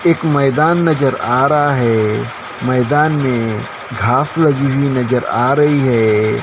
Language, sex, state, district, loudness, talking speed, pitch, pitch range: Hindi, male, Maharashtra, Gondia, -14 LUFS, 140 wpm, 135 Hz, 120-145 Hz